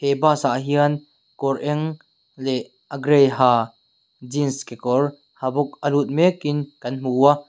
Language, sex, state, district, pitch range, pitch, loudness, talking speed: Mizo, male, Mizoram, Aizawl, 130-145 Hz, 140 Hz, -21 LUFS, 160 wpm